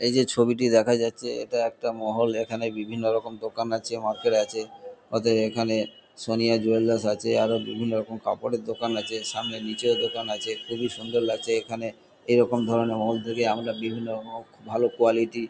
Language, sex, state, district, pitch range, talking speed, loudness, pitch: Bengali, male, West Bengal, Kolkata, 110-115 Hz, 150 wpm, -26 LUFS, 115 Hz